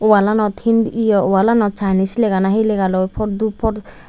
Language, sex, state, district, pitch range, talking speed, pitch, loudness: Chakma, female, Tripura, Unakoti, 195-220 Hz, 160 wpm, 210 Hz, -16 LUFS